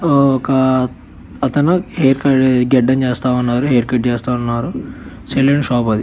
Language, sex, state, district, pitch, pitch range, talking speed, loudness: Telugu, male, Andhra Pradesh, Guntur, 130 Hz, 120-135 Hz, 140 wpm, -15 LUFS